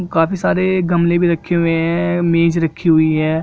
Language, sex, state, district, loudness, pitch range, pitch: Hindi, male, Jharkhand, Jamtara, -15 LUFS, 165-175 Hz, 170 Hz